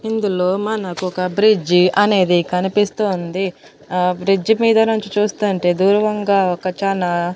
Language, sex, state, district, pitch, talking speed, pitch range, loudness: Telugu, female, Andhra Pradesh, Annamaya, 195 Hz, 105 wpm, 180-210 Hz, -17 LUFS